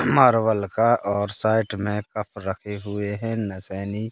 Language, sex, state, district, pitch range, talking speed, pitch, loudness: Hindi, male, Madhya Pradesh, Katni, 100-110 Hz, 145 wpm, 105 Hz, -23 LUFS